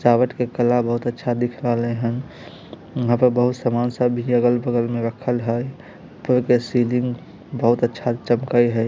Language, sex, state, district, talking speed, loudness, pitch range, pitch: Maithili, male, Bihar, Samastipur, 150 wpm, -21 LUFS, 120-125 Hz, 120 Hz